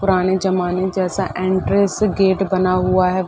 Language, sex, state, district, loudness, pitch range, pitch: Hindi, female, Uttar Pradesh, Gorakhpur, -18 LUFS, 185-190 Hz, 185 Hz